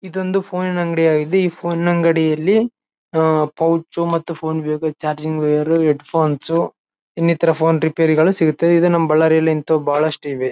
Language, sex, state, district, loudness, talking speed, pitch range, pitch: Kannada, male, Karnataka, Bellary, -17 LUFS, 135 wpm, 155-170 Hz, 160 Hz